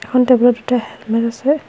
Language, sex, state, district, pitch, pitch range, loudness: Assamese, female, Assam, Hailakandi, 245 Hz, 230-255 Hz, -16 LUFS